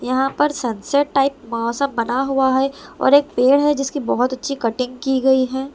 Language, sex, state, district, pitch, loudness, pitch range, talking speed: Hindi, female, Delhi, New Delhi, 265 Hz, -18 LUFS, 255-280 Hz, 200 wpm